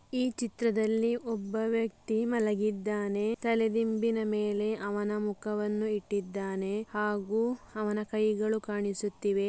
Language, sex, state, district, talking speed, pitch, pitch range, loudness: Kannada, female, Karnataka, Dakshina Kannada, 90 wpm, 215 Hz, 205-225 Hz, -31 LUFS